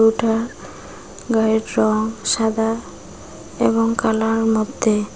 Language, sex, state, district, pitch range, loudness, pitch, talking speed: Bengali, female, West Bengal, Cooch Behar, 220-225 Hz, -19 LUFS, 225 Hz, 80 wpm